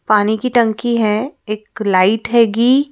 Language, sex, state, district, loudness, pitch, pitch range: Hindi, female, Madhya Pradesh, Bhopal, -15 LUFS, 220 Hz, 215-240 Hz